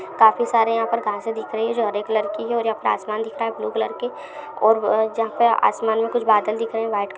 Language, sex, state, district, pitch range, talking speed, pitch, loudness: Hindi, female, Bihar, Lakhisarai, 215-230 Hz, 285 wpm, 225 Hz, -21 LUFS